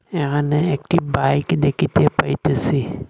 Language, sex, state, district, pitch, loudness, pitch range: Bengali, male, Assam, Hailakandi, 145 Hz, -19 LUFS, 140-165 Hz